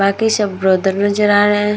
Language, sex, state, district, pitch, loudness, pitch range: Hindi, female, Uttar Pradesh, Muzaffarnagar, 205 Hz, -14 LUFS, 195-210 Hz